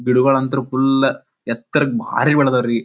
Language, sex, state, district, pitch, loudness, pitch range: Kannada, male, Karnataka, Dharwad, 130 Hz, -17 LUFS, 125-135 Hz